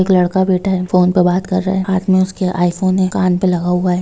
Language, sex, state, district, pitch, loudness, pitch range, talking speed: Hindi, female, Bihar, Sitamarhi, 185 Hz, -15 LUFS, 180-190 Hz, 300 wpm